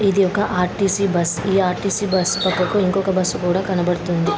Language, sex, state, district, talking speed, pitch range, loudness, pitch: Telugu, female, Andhra Pradesh, Krishna, 165 wpm, 180-195 Hz, -19 LUFS, 185 Hz